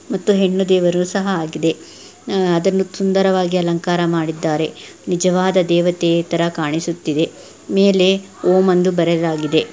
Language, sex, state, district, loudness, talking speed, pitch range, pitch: Kannada, female, Karnataka, Dakshina Kannada, -17 LUFS, 110 wpm, 170-190 Hz, 180 Hz